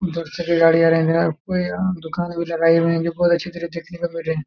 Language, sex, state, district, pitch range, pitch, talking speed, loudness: Hindi, male, Jharkhand, Jamtara, 165-175 Hz, 170 Hz, 270 wpm, -20 LUFS